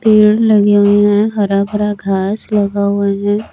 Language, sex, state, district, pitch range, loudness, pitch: Hindi, female, Chandigarh, Chandigarh, 200-210 Hz, -13 LUFS, 205 Hz